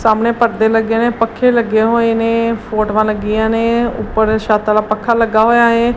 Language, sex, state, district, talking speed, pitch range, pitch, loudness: Punjabi, female, Punjab, Kapurthala, 180 wpm, 220-235 Hz, 225 Hz, -14 LUFS